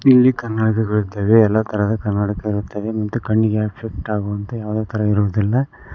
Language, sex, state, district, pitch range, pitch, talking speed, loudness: Kannada, male, Karnataka, Koppal, 105-110 Hz, 110 Hz, 130 wpm, -19 LUFS